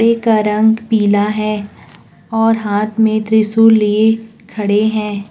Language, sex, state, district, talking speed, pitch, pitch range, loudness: Hindi, female, Uttarakhand, Tehri Garhwal, 135 wpm, 215 Hz, 210-225 Hz, -14 LUFS